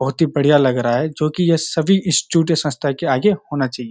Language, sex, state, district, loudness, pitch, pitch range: Hindi, male, Uttarakhand, Uttarkashi, -17 LUFS, 155 Hz, 135-165 Hz